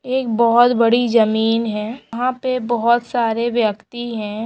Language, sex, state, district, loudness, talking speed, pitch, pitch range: Hindi, female, Andhra Pradesh, Chittoor, -17 LUFS, 175 wpm, 235 Hz, 225-240 Hz